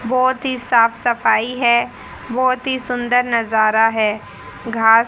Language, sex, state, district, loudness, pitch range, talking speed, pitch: Hindi, female, Haryana, Charkhi Dadri, -17 LUFS, 225-255 Hz, 130 wpm, 235 Hz